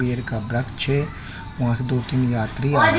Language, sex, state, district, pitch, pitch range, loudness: Hindi, male, Jharkhand, Sahebganj, 125 Hz, 115-130 Hz, -23 LUFS